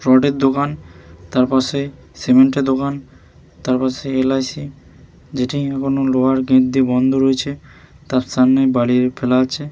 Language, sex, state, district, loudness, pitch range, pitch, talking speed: Bengali, male, West Bengal, Malda, -17 LUFS, 130-140 Hz, 130 Hz, 155 wpm